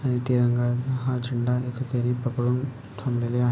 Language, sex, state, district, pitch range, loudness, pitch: Marathi, male, Maharashtra, Sindhudurg, 120-125 Hz, -26 LUFS, 125 Hz